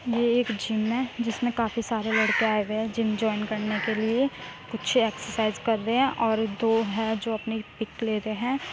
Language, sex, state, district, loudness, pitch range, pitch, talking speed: Hindi, female, Uttar Pradesh, Muzaffarnagar, -26 LUFS, 220-235 Hz, 225 Hz, 215 wpm